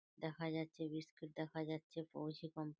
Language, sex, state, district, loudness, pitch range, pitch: Bengali, female, West Bengal, North 24 Parganas, -47 LUFS, 155-160 Hz, 160 Hz